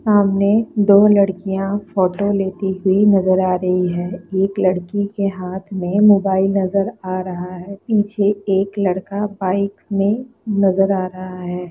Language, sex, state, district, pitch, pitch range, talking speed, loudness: Hindi, female, Bihar, Lakhisarai, 195 Hz, 185-200 Hz, 150 wpm, -18 LUFS